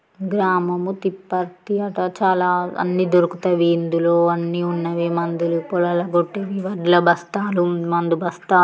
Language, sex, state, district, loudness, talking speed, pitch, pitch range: Telugu, female, Telangana, Nalgonda, -20 LUFS, 120 wpm, 175 Hz, 170-185 Hz